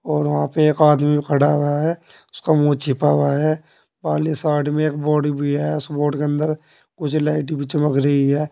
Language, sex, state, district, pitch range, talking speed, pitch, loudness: Hindi, male, Uttar Pradesh, Saharanpur, 145-155 Hz, 210 wpm, 150 Hz, -19 LUFS